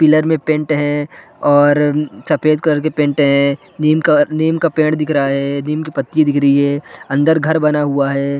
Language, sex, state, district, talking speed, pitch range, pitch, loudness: Hindi, male, Chhattisgarh, Sarguja, 205 wpm, 140-155 Hz, 150 Hz, -15 LUFS